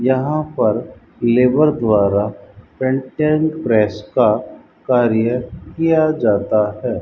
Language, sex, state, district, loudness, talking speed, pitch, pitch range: Hindi, male, Rajasthan, Bikaner, -17 LUFS, 95 wpm, 125 Hz, 105-150 Hz